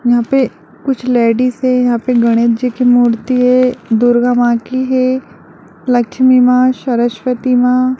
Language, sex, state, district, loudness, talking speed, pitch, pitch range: Hindi, female, Bihar, Darbhanga, -12 LUFS, 150 wpm, 250 Hz, 240-255 Hz